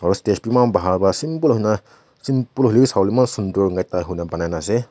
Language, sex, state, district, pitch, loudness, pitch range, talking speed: Nagamese, male, Nagaland, Kohima, 105 Hz, -19 LUFS, 95-125 Hz, 170 wpm